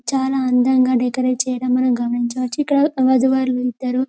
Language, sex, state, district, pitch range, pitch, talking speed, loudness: Telugu, female, Telangana, Karimnagar, 250-265 Hz, 255 Hz, 160 wpm, -18 LUFS